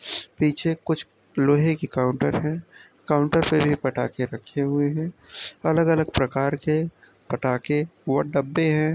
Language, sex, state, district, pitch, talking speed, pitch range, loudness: Hindi, male, Uttar Pradesh, Jyotiba Phule Nagar, 150 Hz, 145 wpm, 140-160 Hz, -24 LUFS